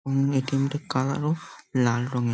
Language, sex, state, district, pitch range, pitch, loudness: Bengali, male, West Bengal, Jhargram, 125-140 Hz, 135 Hz, -26 LUFS